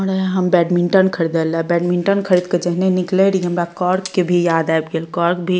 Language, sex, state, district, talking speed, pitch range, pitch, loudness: Maithili, female, Bihar, Madhepura, 225 wpm, 170-185 Hz, 180 Hz, -17 LUFS